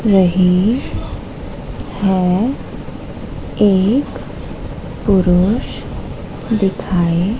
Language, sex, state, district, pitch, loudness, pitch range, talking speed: Hindi, female, Madhya Pradesh, Katni, 195 Hz, -16 LUFS, 180-220 Hz, 40 wpm